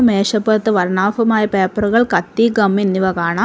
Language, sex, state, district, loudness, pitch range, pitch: Malayalam, female, Kerala, Kollam, -15 LUFS, 190-220 Hz, 205 Hz